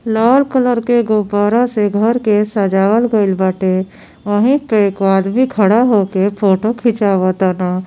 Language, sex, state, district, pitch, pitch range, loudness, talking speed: Bhojpuri, female, Uttar Pradesh, Gorakhpur, 210 Hz, 195-230 Hz, -14 LUFS, 135 wpm